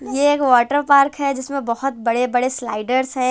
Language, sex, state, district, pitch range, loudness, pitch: Hindi, female, Chhattisgarh, Raipur, 245-275 Hz, -18 LUFS, 260 Hz